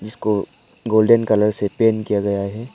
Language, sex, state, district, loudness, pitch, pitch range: Hindi, male, Arunachal Pradesh, Lower Dibang Valley, -18 LUFS, 105 Hz, 100-110 Hz